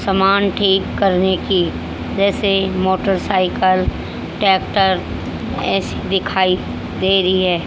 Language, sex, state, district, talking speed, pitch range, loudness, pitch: Hindi, female, Haryana, Jhajjar, 95 wpm, 185-195 Hz, -17 LUFS, 190 Hz